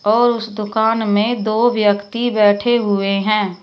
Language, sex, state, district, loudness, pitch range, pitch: Hindi, female, Uttar Pradesh, Shamli, -16 LUFS, 205-230 Hz, 215 Hz